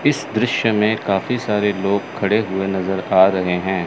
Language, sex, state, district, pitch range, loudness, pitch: Hindi, male, Chandigarh, Chandigarh, 95-105 Hz, -18 LUFS, 100 Hz